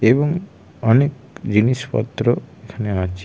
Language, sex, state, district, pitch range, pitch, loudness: Bengali, male, West Bengal, Kolkata, 110-135 Hz, 120 Hz, -19 LUFS